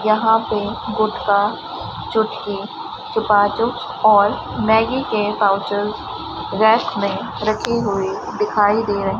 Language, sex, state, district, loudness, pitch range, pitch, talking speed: Hindi, male, Rajasthan, Bikaner, -19 LUFS, 205-225 Hz, 215 Hz, 115 wpm